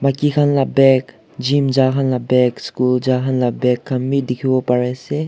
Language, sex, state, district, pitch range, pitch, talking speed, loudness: Nagamese, male, Nagaland, Kohima, 125-135 Hz, 130 Hz, 195 wpm, -17 LUFS